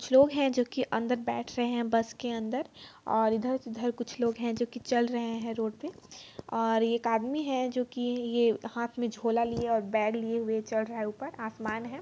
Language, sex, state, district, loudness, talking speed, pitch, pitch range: Hindi, female, Bihar, Muzaffarpur, -30 LUFS, 215 wpm, 235 Hz, 225-245 Hz